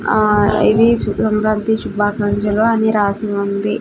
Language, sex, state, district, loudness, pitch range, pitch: Telugu, female, Andhra Pradesh, Sri Satya Sai, -15 LUFS, 205-220 Hz, 210 Hz